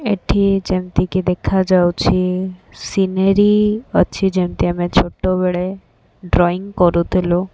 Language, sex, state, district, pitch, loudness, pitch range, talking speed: Odia, female, Odisha, Khordha, 185 Hz, -17 LUFS, 180-195 Hz, 105 wpm